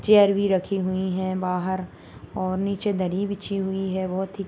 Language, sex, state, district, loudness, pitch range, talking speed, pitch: Hindi, male, Bihar, Bhagalpur, -25 LUFS, 185-200 Hz, 200 wpm, 190 Hz